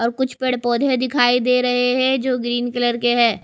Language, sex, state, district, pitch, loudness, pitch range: Hindi, female, Odisha, Khordha, 245 Hz, -18 LUFS, 240-255 Hz